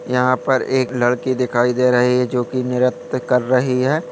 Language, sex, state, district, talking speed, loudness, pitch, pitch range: Hindi, male, Jharkhand, Sahebganj, 220 wpm, -18 LUFS, 125 Hz, 125-130 Hz